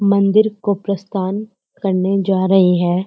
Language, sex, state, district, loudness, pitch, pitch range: Hindi, female, Uttarakhand, Uttarkashi, -17 LUFS, 195 Hz, 190-200 Hz